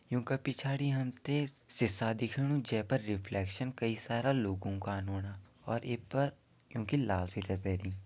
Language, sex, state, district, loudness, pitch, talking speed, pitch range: Garhwali, male, Uttarakhand, Tehri Garhwal, -36 LUFS, 115 Hz, 155 wpm, 100-135 Hz